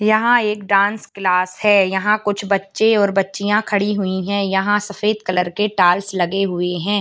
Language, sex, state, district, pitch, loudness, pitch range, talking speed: Hindi, male, Bihar, Bhagalpur, 200 Hz, -17 LUFS, 190-210 Hz, 180 wpm